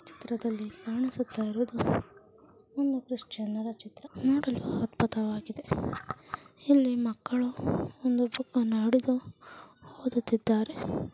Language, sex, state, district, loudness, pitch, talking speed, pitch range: Kannada, female, Karnataka, Chamarajanagar, -30 LUFS, 240 Hz, 80 wpm, 225-255 Hz